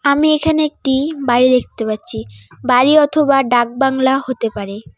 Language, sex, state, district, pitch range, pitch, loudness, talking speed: Bengali, female, West Bengal, Cooch Behar, 235-285 Hz, 260 Hz, -15 LUFS, 130 wpm